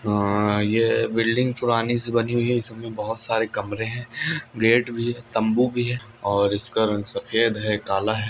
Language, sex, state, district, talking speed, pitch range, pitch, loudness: Hindi, male, Andhra Pradesh, Anantapur, 165 wpm, 105-120 Hz, 115 Hz, -23 LUFS